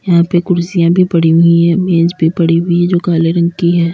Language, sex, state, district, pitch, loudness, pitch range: Hindi, female, Uttar Pradesh, Lalitpur, 170 Hz, -11 LUFS, 170-175 Hz